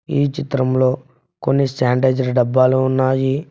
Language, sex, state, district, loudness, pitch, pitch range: Telugu, male, Telangana, Mahabubabad, -17 LUFS, 130 Hz, 130-135 Hz